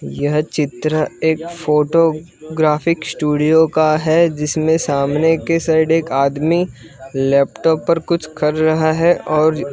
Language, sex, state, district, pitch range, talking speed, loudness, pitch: Hindi, male, Gujarat, Gandhinagar, 150-165 Hz, 130 wpm, -16 LUFS, 155 Hz